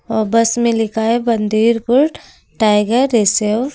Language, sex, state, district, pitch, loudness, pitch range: Hindi, female, Uttar Pradesh, Lucknow, 225 Hz, -15 LUFS, 215-235 Hz